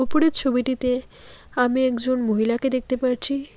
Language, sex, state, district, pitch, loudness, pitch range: Bengali, female, West Bengal, Alipurduar, 255 Hz, -21 LUFS, 250-260 Hz